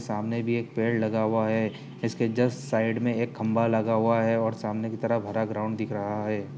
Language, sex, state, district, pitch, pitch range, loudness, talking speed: Hindi, male, Uttar Pradesh, Jyotiba Phule Nagar, 110 Hz, 110-115 Hz, -27 LUFS, 225 wpm